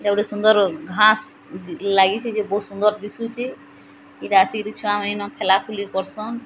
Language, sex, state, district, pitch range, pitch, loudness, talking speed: Odia, female, Odisha, Sambalpur, 195-215 Hz, 205 Hz, -20 LUFS, 140 wpm